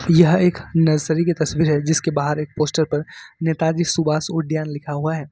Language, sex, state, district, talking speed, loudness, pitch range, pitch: Hindi, male, Jharkhand, Ranchi, 190 wpm, -19 LUFS, 150-165 Hz, 160 Hz